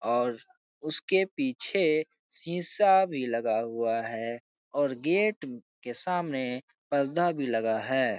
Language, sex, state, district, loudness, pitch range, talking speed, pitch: Hindi, male, Bihar, Jahanabad, -28 LUFS, 120-190 Hz, 125 wpm, 145 Hz